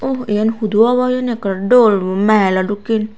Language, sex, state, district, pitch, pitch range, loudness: Chakma, female, Tripura, Unakoti, 215 Hz, 205-245 Hz, -15 LUFS